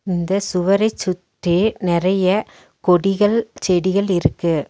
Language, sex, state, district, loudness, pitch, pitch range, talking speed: Tamil, female, Tamil Nadu, Nilgiris, -18 LUFS, 185 Hz, 180-200 Hz, 90 wpm